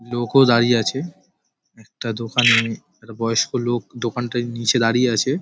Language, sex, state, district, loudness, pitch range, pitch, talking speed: Bengali, male, West Bengal, Paschim Medinipur, -19 LUFS, 115-125 Hz, 120 Hz, 135 wpm